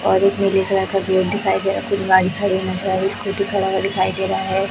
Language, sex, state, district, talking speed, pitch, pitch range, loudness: Hindi, male, Chhattisgarh, Raipur, 320 wpm, 195 Hz, 190-195 Hz, -19 LUFS